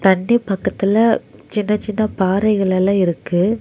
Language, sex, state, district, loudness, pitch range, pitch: Tamil, female, Tamil Nadu, Nilgiris, -17 LUFS, 190-215 Hz, 200 Hz